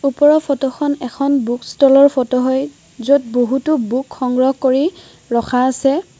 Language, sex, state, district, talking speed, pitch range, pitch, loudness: Assamese, female, Assam, Kamrup Metropolitan, 135 wpm, 255-280 Hz, 270 Hz, -16 LUFS